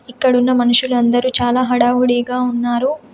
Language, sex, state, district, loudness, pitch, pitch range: Telugu, female, Telangana, Komaram Bheem, -15 LUFS, 245 Hz, 240-255 Hz